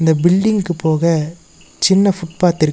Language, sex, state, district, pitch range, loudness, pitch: Tamil, male, Tamil Nadu, Nilgiris, 160-190 Hz, -15 LUFS, 170 Hz